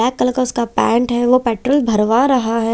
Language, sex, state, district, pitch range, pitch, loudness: Hindi, female, Chandigarh, Chandigarh, 230-255 Hz, 240 Hz, -15 LUFS